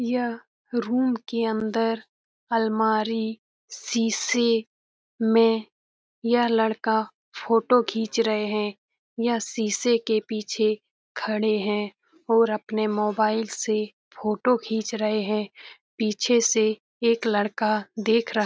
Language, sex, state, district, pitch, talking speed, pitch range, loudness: Hindi, female, Bihar, Jamui, 220 Hz, 110 wpm, 215-230 Hz, -24 LUFS